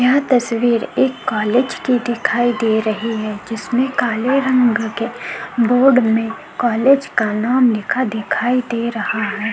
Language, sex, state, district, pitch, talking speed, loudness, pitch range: Hindi, female, Chhattisgarh, Korba, 240 Hz, 145 wpm, -17 LUFS, 225-255 Hz